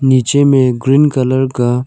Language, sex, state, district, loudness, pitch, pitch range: Hindi, male, Arunachal Pradesh, Lower Dibang Valley, -12 LUFS, 130 Hz, 125-135 Hz